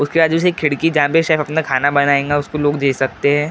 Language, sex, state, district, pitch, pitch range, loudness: Hindi, male, Maharashtra, Gondia, 145 Hz, 140-160 Hz, -16 LUFS